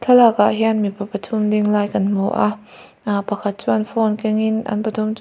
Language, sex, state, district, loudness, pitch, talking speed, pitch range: Mizo, female, Mizoram, Aizawl, -18 LUFS, 210 Hz, 220 wpm, 205-220 Hz